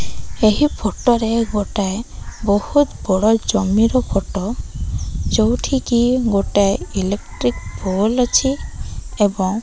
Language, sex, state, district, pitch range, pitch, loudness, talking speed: Odia, female, Odisha, Malkangiri, 200-240 Hz, 215 Hz, -18 LUFS, 95 wpm